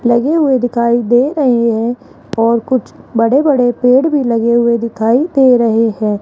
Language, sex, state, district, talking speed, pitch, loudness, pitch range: Hindi, female, Rajasthan, Jaipur, 175 wpm, 240 Hz, -12 LUFS, 230-260 Hz